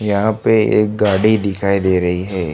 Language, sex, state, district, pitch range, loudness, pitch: Hindi, male, Gujarat, Gandhinagar, 95-105 Hz, -15 LUFS, 100 Hz